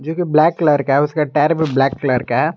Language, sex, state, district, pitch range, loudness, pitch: Hindi, male, Jharkhand, Garhwa, 135-160 Hz, -16 LUFS, 150 Hz